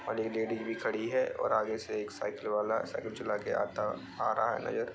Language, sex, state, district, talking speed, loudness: Bhojpuri, male, Bihar, Saran, 240 wpm, -34 LUFS